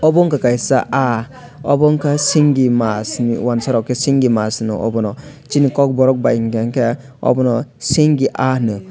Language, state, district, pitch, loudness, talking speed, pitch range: Kokborok, Tripura, West Tripura, 130 Hz, -16 LUFS, 175 wpm, 115-140 Hz